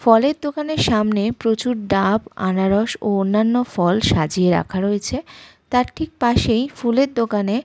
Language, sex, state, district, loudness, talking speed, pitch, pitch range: Bengali, female, West Bengal, Malda, -19 LUFS, 135 wpm, 225 Hz, 200-250 Hz